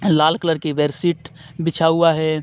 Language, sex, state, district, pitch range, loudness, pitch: Hindi, male, Jharkhand, Deoghar, 155-165 Hz, -18 LUFS, 160 Hz